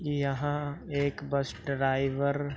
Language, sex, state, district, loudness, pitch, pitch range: Hindi, male, Uttar Pradesh, Hamirpur, -31 LUFS, 140 Hz, 140-145 Hz